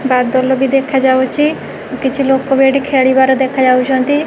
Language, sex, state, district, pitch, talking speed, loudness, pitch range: Odia, female, Odisha, Khordha, 265 Hz, 125 wpm, -12 LUFS, 260-270 Hz